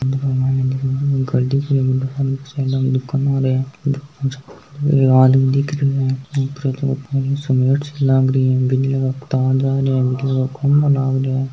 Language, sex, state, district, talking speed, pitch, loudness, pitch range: Hindi, male, Rajasthan, Nagaur, 115 wpm, 135 Hz, -18 LUFS, 130-140 Hz